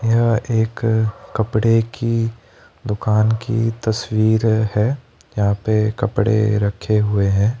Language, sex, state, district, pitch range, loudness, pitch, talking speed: Hindi, male, Rajasthan, Jaipur, 105-115 Hz, -18 LUFS, 110 Hz, 110 wpm